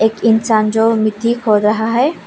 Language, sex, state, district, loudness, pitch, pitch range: Hindi, female, Arunachal Pradesh, Lower Dibang Valley, -14 LUFS, 220 Hz, 215-230 Hz